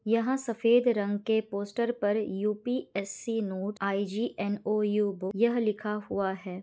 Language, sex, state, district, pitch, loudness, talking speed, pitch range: Hindi, female, Bihar, Kishanganj, 210 Hz, -29 LUFS, 125 wpm, 200-230 Hz